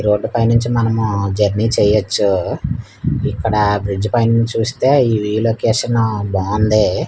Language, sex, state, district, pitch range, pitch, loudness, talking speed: Telugu, male, Andhra Pradesh, Manyam, 105-115 Hz, 110 Hz, -16 LUFS, 100 wpm